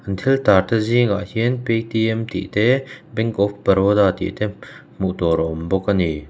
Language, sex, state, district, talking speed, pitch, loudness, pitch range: Mizo, male, Mizoram, Aizawl, 190 wpm, 105 Hz, -19 LUFS, 95-115 Hz